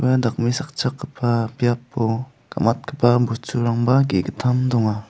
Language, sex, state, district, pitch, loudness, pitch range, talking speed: Garo, male, Meghalaya, South Garo Hills, 120 Hz, -21 LUFS, 115-130 Hz, 70 wpm